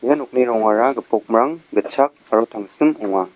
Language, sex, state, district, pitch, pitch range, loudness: Garo, male, Meghalaya, West Garo Hills, 115 Hz, 105-140 Hz, -18 LUFS